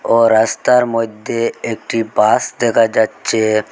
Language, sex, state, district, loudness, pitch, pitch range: Bengali, male, Assam, Hailakandi, -15 LUFS, 115 Hz, 110-115 Hz